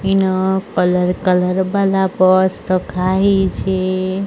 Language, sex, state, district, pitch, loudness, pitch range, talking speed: Odia, male, Odisha, Sambalpur, 185 Hz, -16 LUFS, 185-190 Hz, 70 wpm